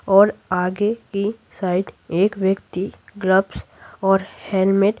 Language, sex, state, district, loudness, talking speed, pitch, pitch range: Hindi, female, Bihar, Patna, -20 LUFS, 120 wpm, 195 Hz, 190-205 Hz